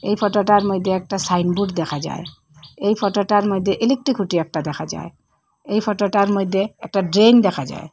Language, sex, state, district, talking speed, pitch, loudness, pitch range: Bengali, female, Assam, Hailakandi, 165 wpm, 200 Hz, -19 LUFS, 180-205 Hz